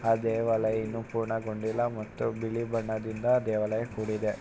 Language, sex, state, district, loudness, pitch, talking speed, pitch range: Kannada, male, Karnataka, Mysore, -30 LUFS, 110 Hz, 135 wpm, 110-115 Hz